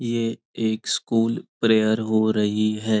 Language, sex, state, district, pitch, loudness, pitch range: Hindi, male, Maharashtra, Nagpur, 110 Hz, -22 LUFS, 110-115 Hz